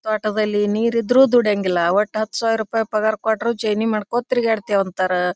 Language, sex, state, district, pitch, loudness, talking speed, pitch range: Kannada, female, Karnataka, Bijapur, 215 Hz, -19 LUFS, 145 wpm, 205-230 Hz